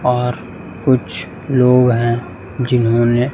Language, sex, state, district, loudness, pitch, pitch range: Hindi, male, Chhattisgarh, Raipur, -16 LUFS, 125 Hz, 115-125 Hz